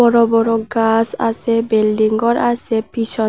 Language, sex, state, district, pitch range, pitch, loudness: Bengali, female, Tripura, West Tripura, 220-235 Hz, 230 Hz, -16 LUFS